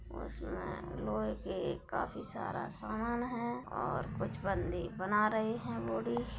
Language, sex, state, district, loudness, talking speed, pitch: Hindi, female, Bihar, Darbhanga, -37 LUFS, 150 wpm, 190 Hz